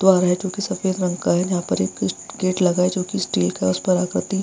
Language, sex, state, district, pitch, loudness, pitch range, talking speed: Hindi, female, Bihar, Vaishali, 180 Hz, -21 LUFS, 175-190 Hz, 310 wpm